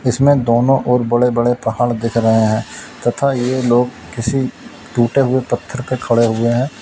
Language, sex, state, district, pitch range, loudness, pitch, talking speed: Hindi, male, Uttar Pradesh, Lalitpur, 115-130 Hz, -16 LUFS, 120 Hz, 175 wpm